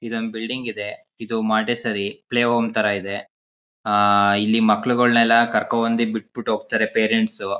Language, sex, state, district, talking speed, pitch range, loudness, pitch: Kannada, male, Karnataka, Mysore, 135 wpm, 105-115 Hz, -20 LUFS, 110 Hz